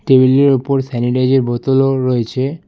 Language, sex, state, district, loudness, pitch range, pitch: Bengali, male, West Bengal, Alipurduar, -14 LUFS, 125-135 Hz, 130 Hz